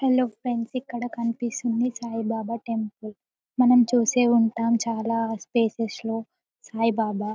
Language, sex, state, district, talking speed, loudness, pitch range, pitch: Telugu, female, Telangana, Karimnagar, 105 wpm, -25 LUFS, 225-240 Hz, 230 Hz